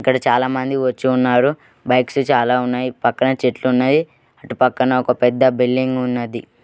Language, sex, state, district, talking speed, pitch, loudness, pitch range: Telugu, male, Andhra Pradesh, Guntur, 165 wpm, 125 Hz, -17 LUFS, 125-130 Hz